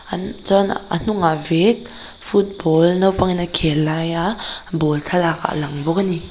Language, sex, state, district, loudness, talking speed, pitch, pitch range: Mizo, female, Mizoram, Aizawl, -18 LUFS, 160 wpm, 170 Hz, 160-195 Hz